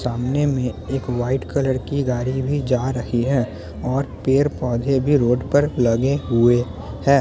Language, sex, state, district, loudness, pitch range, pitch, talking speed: Hindi, male, Bihar, Muzaffarpur, -20 LUFS, 120-135 Hz, 130 Hz, 160 wpm